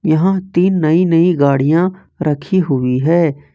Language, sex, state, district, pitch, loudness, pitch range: Hindi, male, Jharkhand, Ranchi, 165 Hz, -14 LUFS, 145-180 Hz